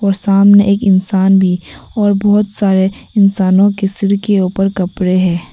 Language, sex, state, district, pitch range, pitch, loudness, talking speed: Hindi, female, Arunachal Pradesh, Papum Pare, 190-200 Hz, 195 Hz, -12 LUFS, 165 wpm